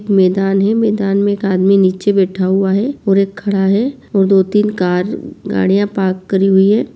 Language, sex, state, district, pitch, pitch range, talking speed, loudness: Hindi, female, Bihar, Begusarai, 195 Hz, 190-205 Hz, 200 wpm, -14 LUFS